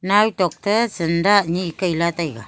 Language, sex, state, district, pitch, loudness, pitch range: Wancho, female, Arunachal Pradesh, Longding, 180 Hz, -19 LUFS, 170-205 Hz